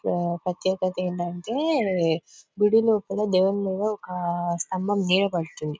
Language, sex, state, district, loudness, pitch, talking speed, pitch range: Telugu, female, Telangana, Nalgonda, -25 LUFS, 185 Hz, 115 wpm, 175-200 Hz